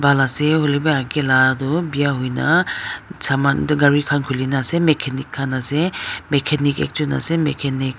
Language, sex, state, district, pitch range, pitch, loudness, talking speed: Nagamese, female, Nagaland, Dimapur, 135-150 Hz, 140 Hz, -18 LUFS, 160 wpm